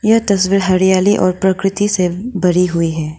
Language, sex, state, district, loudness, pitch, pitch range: Hindi, female, Arunachal Pradesh, Lower Dibang Valley, -14 LUFS, 190 Hz, 180-200 Hz